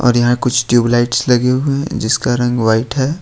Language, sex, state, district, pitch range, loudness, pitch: Hindi, male, Jharkhand, Ranchi, 120-130 Hz, -14 LUFS, 120 Hz